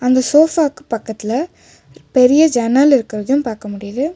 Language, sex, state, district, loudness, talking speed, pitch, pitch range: Tamil, female, Tamil Nadu, Nilgiris, -15 LUFS, 115 wpm, 255 Hz, 230-290 Hz